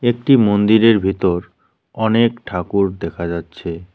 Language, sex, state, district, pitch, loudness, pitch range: Bengali, male, West Bengal, Cooch Behar, 100 Hz, -16 LUFS, 90-115 Hz